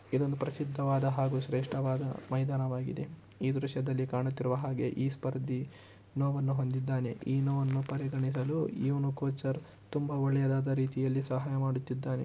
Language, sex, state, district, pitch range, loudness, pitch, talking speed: Kannada, male, Karnataka, Shimoga, 130-135 Hz, -33 LUFS, 135 Hz, 115 wpm